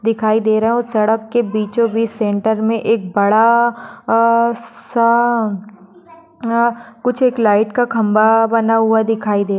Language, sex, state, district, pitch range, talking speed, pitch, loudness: Magahi, female, Bihar, Gaya, 215-235 Hz, 155 wpm, 225 Hz, -15 LUFS